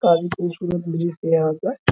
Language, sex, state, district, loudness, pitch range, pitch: Hindi, male, Bihar, Araria, -22 LUFS, 165-180 Hz, 175 Hz